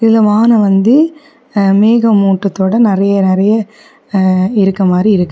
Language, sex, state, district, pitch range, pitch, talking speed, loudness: Tamil, female, Tamil Nadu, Kanyakumari, 195-225 Hz, 205 Hz, 115 wpm, -11 LUFS